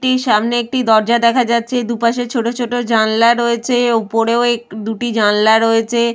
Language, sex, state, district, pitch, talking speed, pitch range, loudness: Bengali, female, West Bengal, Purulia, 235 Hz, 135 wpm, 225-240 Hz, -15 LUFS